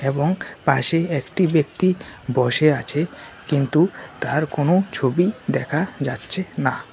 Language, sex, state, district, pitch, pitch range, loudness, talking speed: Bengali, male, Tripura, West Tripura, 155 Hz, 135-175 Hz, -21 LUFS, 110 wpm